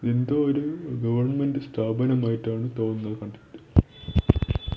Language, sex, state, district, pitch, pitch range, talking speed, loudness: Malayalam, male, Kerala, Thiruvananthapuram, 120 Hz, 110-140 Hz, 75 wpm, -25 LUFS